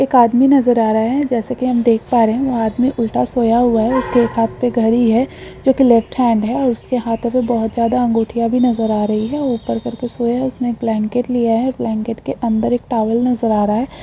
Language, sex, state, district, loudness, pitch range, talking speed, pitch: Hindi, female, Maharashtra, Solapur, -16 LUFS, 225-250 Hz, 230 wpm, 235 Hz